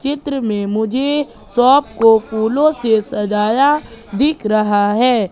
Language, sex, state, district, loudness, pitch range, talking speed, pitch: Hindi, female, Madhya Pradesh, Katni, -15 LUFS, 215-275 Hz, 125 wpm, 225 Hz